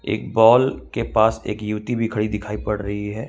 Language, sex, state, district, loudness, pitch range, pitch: Hindi, male, Jharkhand, Ranchi, -20 LUFS, 105-115 Hz, 105 Hz